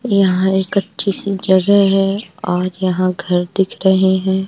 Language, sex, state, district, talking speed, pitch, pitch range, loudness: Hindi, male, Madhya Pradesh, Katni, 160 wpm, 190 Hz, 185-195 Hz, -15 LUFS